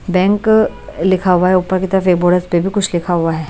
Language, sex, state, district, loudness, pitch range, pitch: Hindi, female, Bihar, Patna, -14 LUFS, 175-190 Hz, 185 Hz